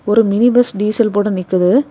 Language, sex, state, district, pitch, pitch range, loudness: Tamil, female, Tamil Nadu, Kanyakumari, 210 Hz, 200-240 Hz, -14 LUFS